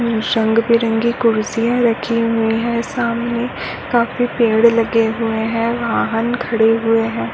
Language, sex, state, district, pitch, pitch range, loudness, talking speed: Hindi, female, Chhattisgarh, Balrampur, 230 Hz, 225-235 Hz, -16 LUFS, 130 wpm